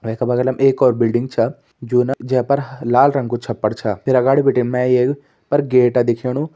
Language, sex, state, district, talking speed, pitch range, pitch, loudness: Hindi, male, Uttarakhand, Tehri Garhwal, 220 wpm, 120-135 Hz, 125 Hz, -17 LUFS